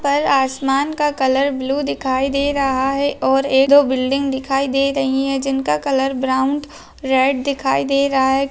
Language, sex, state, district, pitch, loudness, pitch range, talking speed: Hindi, female, Rajasthan, Nagaur, 270 Hz, -17 LUFS, 265-280 Hz, 175 wpm